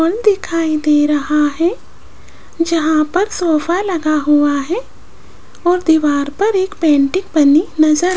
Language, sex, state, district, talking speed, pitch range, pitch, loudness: Hindi, female, Rajasthan, Jaipur, 130 wpm, 300-365 Hz, 320 Hz, -15 LUFS